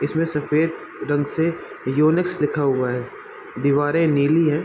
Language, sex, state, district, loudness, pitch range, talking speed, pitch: Hindi, male, Bihar, Sitamarhi, -21 LUFS, 140-160 Hz, 140 wpm, 150 Hz